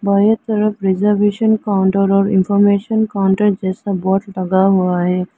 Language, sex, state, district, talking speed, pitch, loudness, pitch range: Hindi, female, Arunachal Pradesh, Lower Dibang Valley, 145 wpm, 195 Hz, -15 LUFS, 190-205 Hz